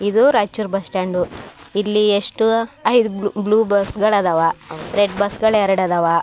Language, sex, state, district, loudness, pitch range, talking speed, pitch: Kannada, male, Karnataka, Raichur, -18 LUFS, 195-215 Hz, 105 wpm, 205 Hz